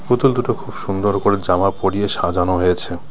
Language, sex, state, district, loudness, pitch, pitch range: Bengali, male, West Bengal, Cooch Behar, -18 LUFS, 100 Hz, 90-110 Hz